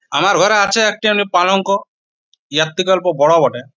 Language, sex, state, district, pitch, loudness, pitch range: Bengali, male, West Bengal, Purulia, 190 Hz, -14 LUFS, 175-205 Hz